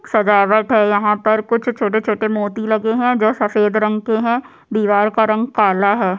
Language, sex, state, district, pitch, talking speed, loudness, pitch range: Hindi, male, Chhattisgarh, Sukma, 215 Hz, 165 wpm, -16 LUFS, 210-220 Hz